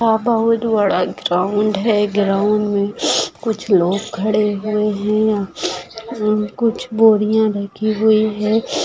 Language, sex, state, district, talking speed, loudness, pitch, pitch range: Hindi, female, Maharashtra, Pune, 120 wpm, -17 LUFS, 215 Hz, 205-220 Hz